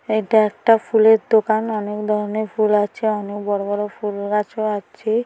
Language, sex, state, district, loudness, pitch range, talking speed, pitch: Bengali, female, West Bengal, Paschim Medinipur, -19 LUFS, 210-220 Hz, 170 wpm, 215 Hz